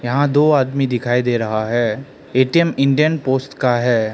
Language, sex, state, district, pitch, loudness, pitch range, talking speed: Hindi, male, Arunachal Pradesh, Lower Dibang Valley, 130 Hz, -17 LUFS, 120-140 Hz, 175 wpm